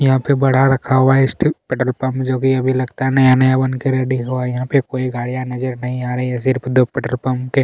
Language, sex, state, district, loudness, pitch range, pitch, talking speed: Hindi, male, Chhattisgarh, Kabirdham, -17 LUFS, 125-130 Hz, 130 Hz, 245 wpm